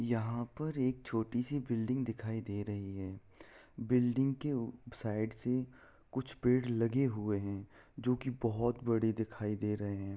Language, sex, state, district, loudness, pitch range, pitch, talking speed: Hindi, male, Bihar, Saran, -36 LUFS, 105-125 Hz, 115 Hz, 160 wpm